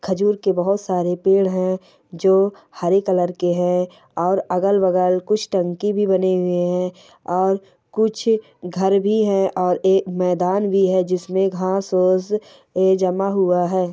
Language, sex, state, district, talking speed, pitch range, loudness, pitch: Hindi, female, Telangana, Nalgonda, 140 wpm, 180-195 Hz, -19 LUFS, 185 Hz